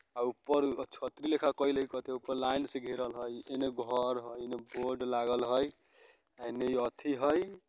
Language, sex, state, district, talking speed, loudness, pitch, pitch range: Bajjika, male, Bihar, Vaishali, 180 wpm, -34 LUFS, 130 Hz, 125-140 Hz